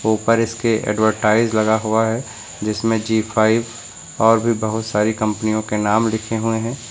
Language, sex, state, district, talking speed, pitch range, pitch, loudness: Hindi, male, Uttar Pradesh, Lucknow, 165 wpm, 110-115 Hz, 110 Hz, -18 LUFS